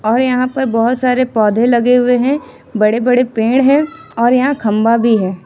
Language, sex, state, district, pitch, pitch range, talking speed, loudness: Hindi, female, Jharkhand, Ranchi, 245 Hz, 225-255 Hz, 200 wpm, -13 LUFS